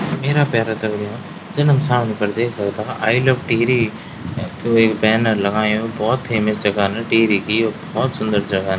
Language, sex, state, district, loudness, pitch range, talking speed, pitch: Garhwali, male, Uttarakhand, Tehri Garhwal, -18 LUFS, 105-120 Hz, 175 wpm, 110 Hz